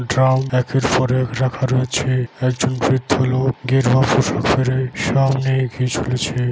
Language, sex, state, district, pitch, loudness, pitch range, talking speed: Bengali, male, West Bengal, Malda, 130 Hz, -18 LUFS, 125-130 Hz, 140 wpm